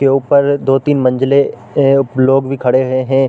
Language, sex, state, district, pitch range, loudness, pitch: Hindi, male, Chhattisgarh, Bilaspur, 130-140 Hz, -13 LUFS, 135 Hz